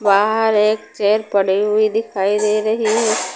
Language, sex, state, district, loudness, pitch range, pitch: Hindi, female, Punjab, Pathankot, -17 LUFS, 205-220 Hz, 215 Hz